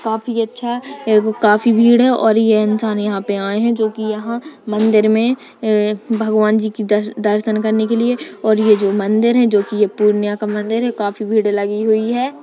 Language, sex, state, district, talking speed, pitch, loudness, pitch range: Hindi, female, Bihar, Purnia, 215 wpm, 220 Hz, -16 LUFS, 210-230 Hz